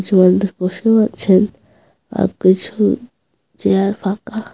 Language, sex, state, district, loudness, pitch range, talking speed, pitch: Bengali, female, Tripura, Unakoti, -16 LUFS, 190-220 Hz, 80 wpm, 195 Hz